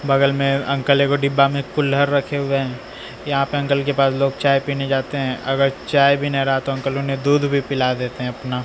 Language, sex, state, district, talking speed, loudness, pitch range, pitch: Hindi, male, Bihar, Katihar, 235 wpm, -19 LUFS, 135-140 Hz, 140 Hz